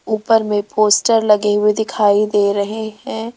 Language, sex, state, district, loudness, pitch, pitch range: Hindi, female, Rajasthan, Jaipur, -15 LUFS, 215 Hz, 205-220 Hz